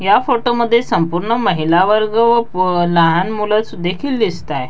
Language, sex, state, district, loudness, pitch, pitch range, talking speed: Marathi, female, Maharashtra, Dhule, -15 LUFS, 215 Hz, 175-235 Hz, 140 wpm